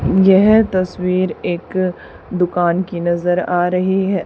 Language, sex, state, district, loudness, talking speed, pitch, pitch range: Hindi, female, Haryana, Charkhi Dadri, -16 LUFS, 125 wpm, 180 Hz, 175-190 Hz